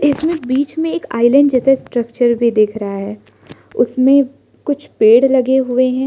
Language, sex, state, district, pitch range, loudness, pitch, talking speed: Hindi, female, Arunachal Pradesh, Lower Dibang Valley, 235-280 Hz, -14 LUFS, 255 Hz, 170 wpm